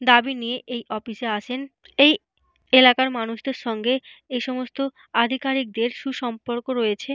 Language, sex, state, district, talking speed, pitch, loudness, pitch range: Bengali, female, Jharkhand, Jamtara, 125 wpm, 250 Hz, -22 LUFS, 235-265 Hz